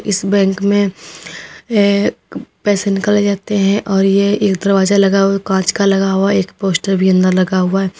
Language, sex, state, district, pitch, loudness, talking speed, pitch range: Hindi, female, Uttar Pradesh, Lalitpur, 195 Hz, -14 LUFS, 175 wpm, 195-200 Hz